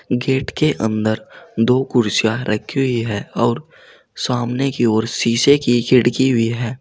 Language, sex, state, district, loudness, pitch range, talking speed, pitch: Hindi, male, Uttar Pradesh, Saharanpur, -18 LUFS, 115-130 Hz, 150 wpm, 120 Hz